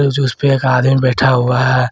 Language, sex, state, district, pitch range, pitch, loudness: Hindi, male, Jharkhand, Garhwa, 125-135 Hz, 130 Hz, -13 LUFS